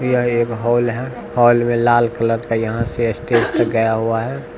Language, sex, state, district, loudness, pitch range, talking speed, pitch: Hindi, male, Bihar, Begusarai, -17 LUFS, 115-120 Hz, 210 wpm, 115 Hz